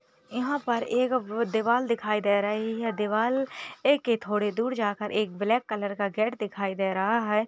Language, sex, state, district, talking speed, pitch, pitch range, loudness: Hindi, female, Uttar Pradesh, Deoria, 175 wpm, 220 Hz, 210-235 Hz, -27 LUFS